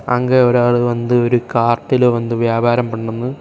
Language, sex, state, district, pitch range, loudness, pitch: Tamil, male, Tamil Nadu, Kanyakumari, 115-125 Hz, -15 LUFS, 120 Hz